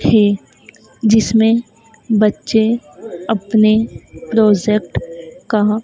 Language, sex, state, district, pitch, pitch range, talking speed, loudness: Hindi, female, Madhya Pradesh, Dhar, 220 Hz, 210-225 Hz, 60 wpm, -15 LUFS